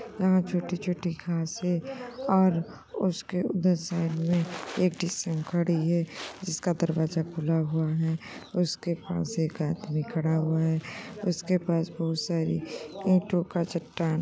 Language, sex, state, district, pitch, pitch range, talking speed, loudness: Hindi, female, Uttar Pradesh, Gorakhpur, 170 Hz, 160-180 Hz, 135 wpm, -28 LUFS